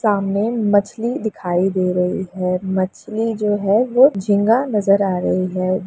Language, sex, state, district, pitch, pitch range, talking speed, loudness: Hindi, female, Uttar Pradesh, Jalaun, 200 Hz, 185-220 Hz, 155 wpm, -18 LUFS